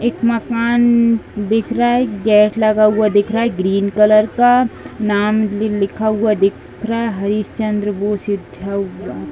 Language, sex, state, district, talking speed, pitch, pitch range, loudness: Hindi, female, Uttar Pradesh, Varanasi, 160 wpm, 215 Hz, 205-230 Hz, -16 LUFS